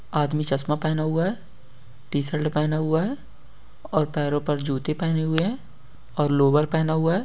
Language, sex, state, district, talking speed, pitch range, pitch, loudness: Hindi, male, Bihar, Samastipur, 180 wpm, 145-160 Hz, 150 Hz, -24 LUFS